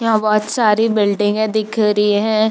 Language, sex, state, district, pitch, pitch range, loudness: Hindi, female, Bihar, Darbhanga, 215 Hz, 210-220 Hz, -16 LUFS